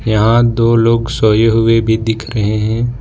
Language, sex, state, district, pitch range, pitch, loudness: Hindi, male, Jharkhand, Ranchi, 110-115 Hz, 115 Hz, -13 LUFS